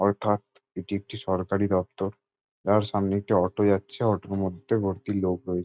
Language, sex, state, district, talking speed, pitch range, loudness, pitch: Bengali, male, West Bengal, Jalpaiguri, 160 wpm, 95-105 Hz, -27 LUFS, 100 Hz